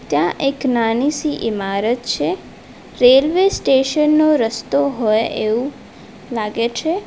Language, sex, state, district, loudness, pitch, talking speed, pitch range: Gujarati, female, Gujarat, Valsad, -17 LUFS, 250 Hz, 120 wpm, 225-290 Hz